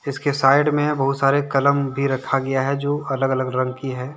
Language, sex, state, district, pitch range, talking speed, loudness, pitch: Hindi, male, Jharkhand, Deoghar, 130-140 Hz, 230 wpm, -20 LUFS, 135 Hz